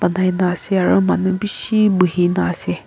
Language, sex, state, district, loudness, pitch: Nagamese, female, Nagaland, Kohima, -17 LUFS, 180 Hz